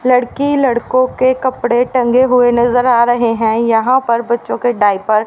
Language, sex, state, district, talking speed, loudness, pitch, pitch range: Hindi, female, Haryana, Rohtak, 180 wpm, -13 LUFS, 240 Hz, 235-255 Hz